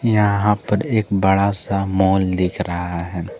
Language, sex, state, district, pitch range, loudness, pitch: Hindi, male, Jharkhand, Garhwa, 90-105 Hz, -19 LUFS, 95 Hz